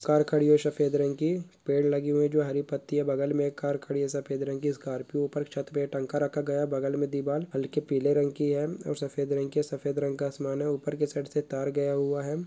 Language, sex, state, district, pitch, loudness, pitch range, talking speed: Hindi, female, Bihar, Purnia, 145 Hz, -29 LUFS, 140-145 Hz, 260 wpm